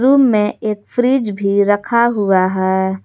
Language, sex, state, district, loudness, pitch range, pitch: Hindi, female, Jharkhand, Garhwa, -15 LUFS, 195-235 Hz, 205 Hz